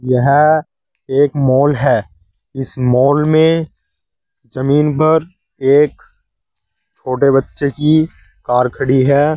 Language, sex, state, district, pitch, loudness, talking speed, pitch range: Hindi, male, Uttar Pradesh, Saharanpur, 140 Hz, -14 LUFS, 100 wpm, 130-150 Hz